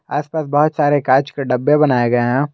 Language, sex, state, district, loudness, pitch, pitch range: Hindi, male, Jharkhand, Garhwa, -16 LUFS, 145 Hz, 130-150 Hz